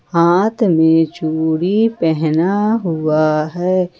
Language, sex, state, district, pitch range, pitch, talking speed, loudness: Hindi, female, Jharkhand, Ranchi, 160-185 Hz, 170 Hz, 90 wpm, -15 LUFS